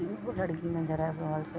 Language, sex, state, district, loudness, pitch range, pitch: Maithili, female, Bihar, Vaishali, -33 LUFS, 155-170 Hz, 165 Hz